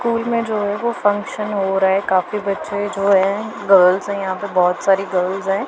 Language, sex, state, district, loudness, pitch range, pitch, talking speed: Hindi, female, Punjab, Pathankot, -18 LUFS, 195-210 Hz, 200 Hz, 220 wpm